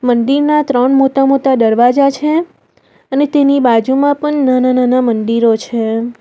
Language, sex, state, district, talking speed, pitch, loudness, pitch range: Gujarati, female, Gujarat, Valsad, 115 wpm, 260 Hz, -12 LUFS, 240-280 Hz